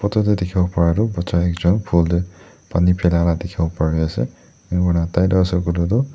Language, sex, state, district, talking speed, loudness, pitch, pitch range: Nagamese, male, Nagaland, Dimapur, 155 wpm, -19 LUFS, 90 Hz, 85-95 Hz